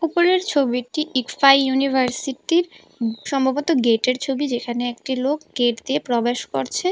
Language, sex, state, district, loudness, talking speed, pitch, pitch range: Bengali, female, Tripura, West Tripura, -20 LUFS, 120 wpm, 265 Hz, 245-290 Hz